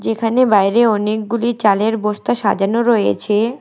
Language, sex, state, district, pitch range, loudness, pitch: Bengali, female, West Bengal, Alipurduar, 205-235 Hz, -16 LUFS, 220 Hz